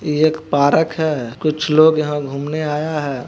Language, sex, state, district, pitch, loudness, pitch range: Hindi, male, Bihar, Begusarai, 150 Hz, -17 LUFS, 145-155 Hz